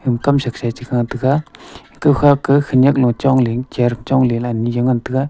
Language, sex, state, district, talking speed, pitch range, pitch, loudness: Wancho, male, Arunachal Pradesh, Longding, 180 wpm, 120-140 Hz, 130 Hz, -16 LUFS